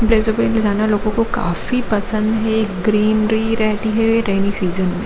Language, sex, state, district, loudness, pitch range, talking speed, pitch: Hindi, female, Jharkhand, Jamtara, -17 LUFS, 210-225 Hz, 200 wpm, 215 Hz